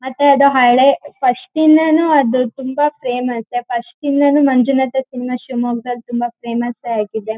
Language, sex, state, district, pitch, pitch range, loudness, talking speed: Kannada, female, Karnataka, Shimoga, 255 Hz, 240-280 Hz, -15 LUFS, 130 wpm